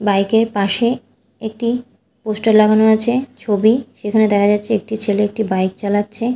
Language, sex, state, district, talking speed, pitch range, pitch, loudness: Bengali, female, Odisha, Malkangiri, 150 wpm, 205-230 Hz, 220 Hz, -16 LUFS